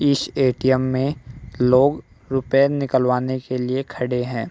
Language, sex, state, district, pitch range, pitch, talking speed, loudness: Hindi, male, Uttar Pradesh, Hamirpur, 125-135 Hz, 130 Hz, 135 wpm, -20 LUFS